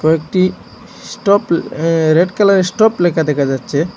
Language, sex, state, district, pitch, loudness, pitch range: Bengali, male, Assam, Hailakandi, 170 Hz, -14 LUFS, 155-190 Hz